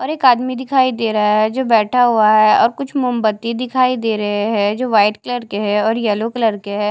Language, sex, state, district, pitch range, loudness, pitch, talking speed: Hindi, female, Haryana, Charkhi Dadri, 210-250 Hz, -16 LUFS, 225 Hz, 245 wpm